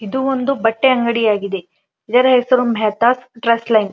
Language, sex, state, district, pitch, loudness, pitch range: Kannada, female, Karnataka, Dharwad, 235 Hz, -16 LUFS, 220-255 Hz